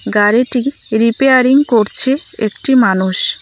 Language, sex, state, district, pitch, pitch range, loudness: Bengali, female, West Bengal, Cooch Behar, 245 Hz, 215-265 Hz, -12 LUFS